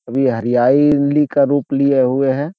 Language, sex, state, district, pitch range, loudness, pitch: Hindi, male, Bihar, Jamui, 130-145 Hz, -15 LUFS, 140 Hz